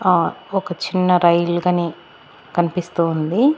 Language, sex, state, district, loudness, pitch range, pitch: Telugu, female, Andhra Pradesh, Annamaya, -19 LUFS, 170-185 Hz, 175 Hz